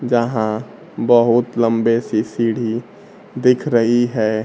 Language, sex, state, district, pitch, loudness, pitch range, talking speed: Hindi, male, Bihar, Kaimur, 115 Hz, -17 LUFS, 115-120 Hz, 110 wpm